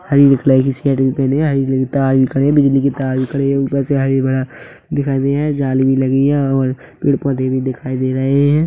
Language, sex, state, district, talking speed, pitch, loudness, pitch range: Hindi, male, Chhattisgarh, Rajnandgaon, 250 wpm, 135 Hz, -15 LUFS, 130-140 Hz